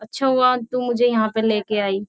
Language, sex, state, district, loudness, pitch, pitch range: Hindi, female, Uttar Pradesh, Jyotiba Phule Nagar, -20 LUFS, 225 Hz, 215-250 Hz